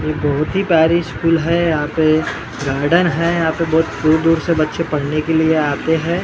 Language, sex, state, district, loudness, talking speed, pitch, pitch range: Hindi, male, Maharashtra, Gondia, -16 LUFS, 210 wpm, 160 Hz, 155-165 Hz